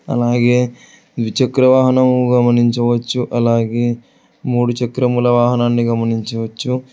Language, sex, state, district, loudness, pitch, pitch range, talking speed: Telugu, male, Telangana, Hyderabad, -15 LUFS, 120 Hz, 120-125 Hz, 80 wpm